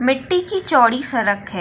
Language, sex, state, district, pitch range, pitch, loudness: Hindi, female, Maharashtra, Chandrapur, 230-340 Hz, 260 Hz, -17 LUFS